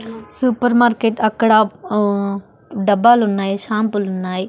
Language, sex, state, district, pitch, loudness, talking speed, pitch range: Telugu, female, Andhra Pradesh, Annamaya, 215 Hz, -16 LUFS, 95 wpm, 200-225 Hz